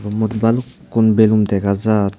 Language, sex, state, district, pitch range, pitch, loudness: Chakma, male, Tripura, Dhalai, 105-110 Hz, 110 Hz, -16 LUFS